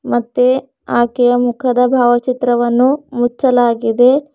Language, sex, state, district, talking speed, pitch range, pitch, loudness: Kannada, female, Karnataka, Bidar, 70 wpm, 240-255 Hz, 245 Hz, -14 LUFS